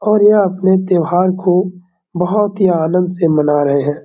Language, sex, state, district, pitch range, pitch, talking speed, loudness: Hindi, male, Bihar, Araria, 170-190 Hz, 180 Hz, 175 wpm, -14 LUFS